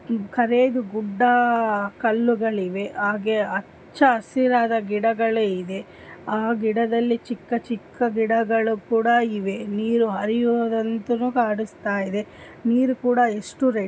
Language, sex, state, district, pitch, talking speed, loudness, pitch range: Kannada, female, Karnataka, Dharwad, 225 Hz, 100 wpm, -22 LUFS, 210-240 Hz